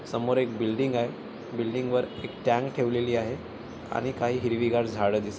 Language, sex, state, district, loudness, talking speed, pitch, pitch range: Marathi, male, Maharashtra, Nagpur, -28 LUFS, 165 wpm, 120 Hz, 115-125 Hz